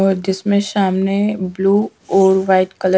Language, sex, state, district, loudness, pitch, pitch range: Hindi, female, Punjab, Pathankot, -16 LUFS, 195 Hz, 190-200 Hz